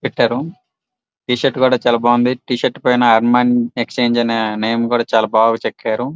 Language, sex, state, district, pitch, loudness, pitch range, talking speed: Telugu, male, Andhra Pradesh, Srikakulam, 120 Hz, -15 LUFS, 115-125 Hz, 145 wpm